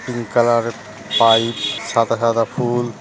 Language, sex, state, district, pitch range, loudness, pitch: Bengali, male, West Bengal, Jhargram, 115-120 Hz, -17 LUFS, 115 Hz